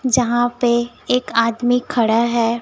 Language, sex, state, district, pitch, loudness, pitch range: Hindi, female, Chhattisgarh, Raipur, 240 Hz, -18 LUFS, 230-250 Hz